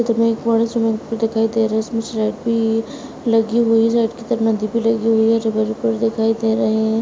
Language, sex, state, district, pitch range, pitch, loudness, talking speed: Hindi, female, Uttar Pradesh, Muzaffarnagar, 220-230 Hz, 225 Hz, -18 LUFS, 110 wpm